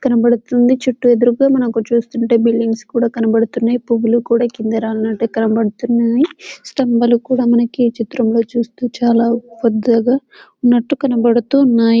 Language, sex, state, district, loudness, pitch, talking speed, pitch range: Telugu, female, Telangana, Karimnagar, -15 LUFS, 235 Hz, 105 wpm, 230-245 Hz